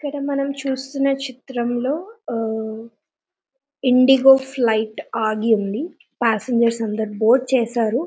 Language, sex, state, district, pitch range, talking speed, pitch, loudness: Telugu, female, Telangana, Nalgonda, 225-275 Hz, 95 wpm, 255 Hz, -20 LUFS